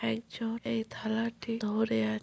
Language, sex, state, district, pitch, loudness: Bengali, female, West Bengal, Paschim Medinipur, 210 Hz, -33 LUFS